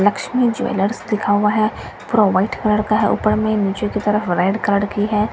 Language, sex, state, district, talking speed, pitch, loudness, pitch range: Hindi, female, Bihar, Katihar, 235 wpm, 210 Hz, -18 LUFS, 205-215 Hz